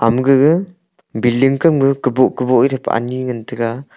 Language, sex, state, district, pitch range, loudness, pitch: Wancho, male, Arunachal Pradesh, Longding, 120-135 Hz, -15 LUFS, 130 Hz